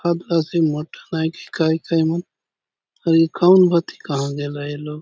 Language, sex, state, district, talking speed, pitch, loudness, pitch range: Halbi, male, Chhattisgarh, Bastar, 170 wpm, 165 Hz, -19 LUFS, 150-170 Hz